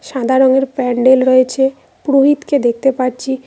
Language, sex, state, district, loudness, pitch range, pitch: Bengali, female, West Bengal, Cooch Behar, -13 LUFS, 255-270 Hz, 260 Hz